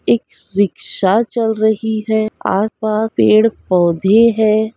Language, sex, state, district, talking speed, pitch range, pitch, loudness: Hindi, female, Chhattisgarh, Raigarh, 125 wpm, 200-220 Hz, 220 Hz, -15 LUFS